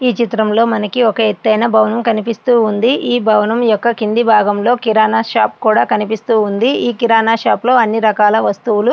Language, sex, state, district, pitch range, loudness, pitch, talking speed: Telugu, female, Andhra Pradesh, Srikakulam, 215-235 Hz, -13 LUFS, 225 Hz, 155 wpm